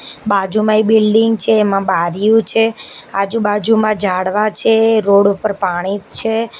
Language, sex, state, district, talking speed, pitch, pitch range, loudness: Gujarati, female, Gujarat, Gandhinagar, 135 wpm, 215 Hz, 200-225 Hz, -14 LUFS